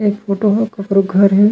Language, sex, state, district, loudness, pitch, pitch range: Chhattisgarhi, male, Chhattisgarh, Raigarh, -15 LUFS, 200 Hz, 195-210 Hz